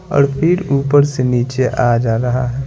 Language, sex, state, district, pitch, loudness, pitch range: Hindi, male, Bihar, Patna, 130 Hz, -15 LUFS, 125-140 Hz